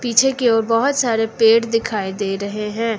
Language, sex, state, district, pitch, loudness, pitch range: Hindi, female, Uttar Pradesh, Lucknow, 230 Hz, -18 LUFS, 210-230 Hz